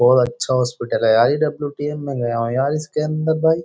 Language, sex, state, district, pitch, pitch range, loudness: Hindi, male, Uttar Pradesh, Jyotiba Phule Nagar, 140 Hz, 125-155 Hz, -19 LUFS